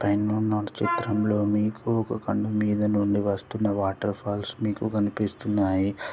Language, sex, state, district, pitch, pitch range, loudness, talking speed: Telugu, male, Telangana, Karimnagar, 105 Hz, 100-105 Hz, -26 LUFS, 115 wpm